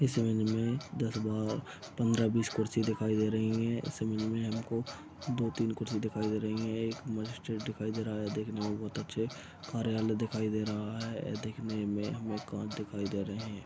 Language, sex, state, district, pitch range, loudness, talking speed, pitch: Hindi, male, Uttar Pradesh, Ghazipur, 110-115 Hz, -34 LUFS, 200 wpm, 110 Hz